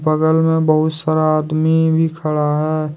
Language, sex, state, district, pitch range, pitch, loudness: Hindi, male, Jharkhand, Deoghar, 155-160 Hz, 155 Hz, -16 LUFS